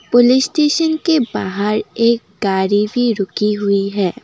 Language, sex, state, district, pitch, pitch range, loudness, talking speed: Hindi, female, Assam, Kamrup Metropolitan, 215 Hz, 200-245 Hz, -16 LUFS, 140 wpm